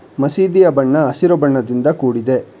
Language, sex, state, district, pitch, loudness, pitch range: Kannada, male, Karnataka, Bangalore, 140 Hz, -14 LUFS, 130-160 Hz